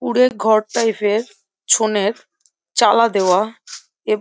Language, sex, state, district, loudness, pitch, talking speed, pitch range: Bengali, female, West Bengal, Jhargram, -17 LUFS, 215 Hz, 130 wpm, 205-230 Hz